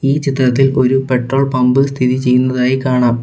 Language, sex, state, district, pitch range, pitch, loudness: Malayalam, male, Kerala, Kollam, 125-135 Hz, 130 Hz, -13 LUFS